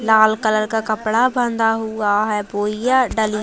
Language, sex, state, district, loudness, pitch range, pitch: Hindi, female, Uttar Pradesh, Budaun, -18 LUFS, 215-225 Hz, 220 Hz